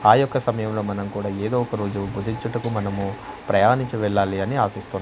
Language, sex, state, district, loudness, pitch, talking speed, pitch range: Telugu, male, Andhra Pradesh, Manyam, -23 LUFS, 105 Hz, 165 wpm, 100-120 Hz